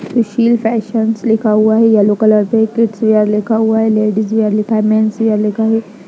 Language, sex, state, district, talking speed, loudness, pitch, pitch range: Hindi, female, Bihar, Jamui, 205 wpm, -13 LUFS, 220 Hz, 215-225 Hz